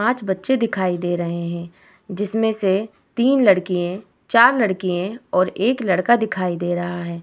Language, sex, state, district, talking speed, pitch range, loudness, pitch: Hindi, female, Bihar, Vaishali, 160 wpm, 175-230 Hz, -20 LUFS, 190 Hz